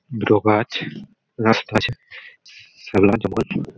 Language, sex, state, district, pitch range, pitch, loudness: Bengali, male, West Bengal, Malda, 105-120 Hz, 110 Hz, -19 LUFS